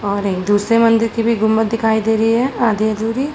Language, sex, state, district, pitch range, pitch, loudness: Hindi, female, Uttar Pradesh, Jalaun, 215-230 Hz, 225 Hz, -16 LUFS